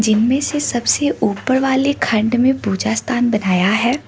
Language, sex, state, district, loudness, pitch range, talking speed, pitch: Hindi, female, Sikkim, Gangtok, -16 LUFS, 215-265 Hz, 160 wpm, 240 Hz